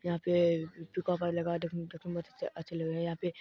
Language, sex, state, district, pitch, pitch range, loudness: Hindi, male, Bihar, Darbhanga, 170 Hz, 165-175 Hz, -34 LUFS